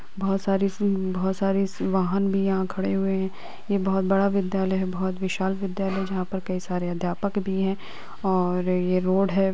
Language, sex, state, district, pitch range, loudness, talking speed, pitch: Hindi, female, Bihar, Lakhisarai, 185-195 Hz, -25 LUFS, 195 wpm, 190 Hz